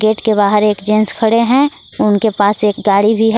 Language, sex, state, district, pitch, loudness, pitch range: Hindi, female, Jharkhand, Garhwa, 215 Hz, -13 LUFS, 210-225 Hz